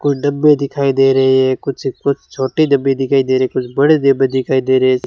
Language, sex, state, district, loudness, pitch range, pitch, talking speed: Hindi, male, Rajasthan, Bikaner, -14 LUFS, 130-140 Hz, 135 Hz, 235 wpm